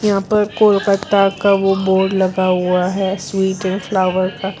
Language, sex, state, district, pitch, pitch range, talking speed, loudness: Hindi, female, Gujarat, Valsad, 195 Hz, 185-200 Hz, 170 wpm, -16 LUFS